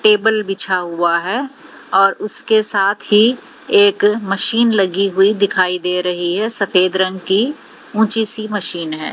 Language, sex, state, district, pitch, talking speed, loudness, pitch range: Hindi, female, Haryana, Jhajjar, 200 Hz, 150 wpm, -15 LUFS, 185-220 Hz